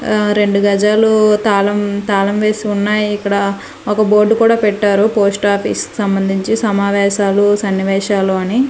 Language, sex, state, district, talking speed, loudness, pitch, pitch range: Telugu, female, Andhra Pradesh, Manyam, 130 wpm, -14 LUFS, 205 Hz, 200-210 Hz